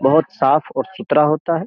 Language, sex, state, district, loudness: Hindi, male, Uttar Pradesh, Jyotiba Phule Nagar, -17 LUFS